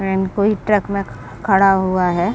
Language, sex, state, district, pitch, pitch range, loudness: Hindi, female, Bihar, Saran, 195 Hz, 180-200 Hz, -17 LUFS